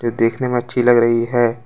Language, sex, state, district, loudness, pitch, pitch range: Hindi, male, Jharkhand, Deoghar, -16 LUFS, 120 Hz, 115-125 Hz